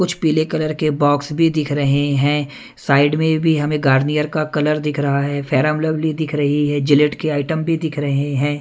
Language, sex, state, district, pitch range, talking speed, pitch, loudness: Hindi, male, Punjab, Kapurthala, 145-155 Hz, 215 wpm, 150 Hz, -17 LUFS